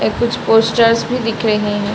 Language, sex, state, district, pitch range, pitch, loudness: Hindi, female, Bihar, Saran, 210-230 Hz, 225 Hz, -15 LUFS